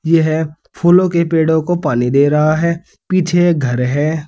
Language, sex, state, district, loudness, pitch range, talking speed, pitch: Hindi, male, Uttar Pradesh, Saharanpur, -14 LUFS, 150-170 Hz, 180 wpm, 160 Hz